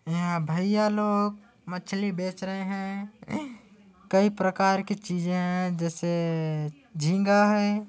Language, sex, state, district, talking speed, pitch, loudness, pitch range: Hindi, male, Chhattisgarh, Kabirdham, 115 wpm, 190 Hz, -27 LUFS, 175-205 Hz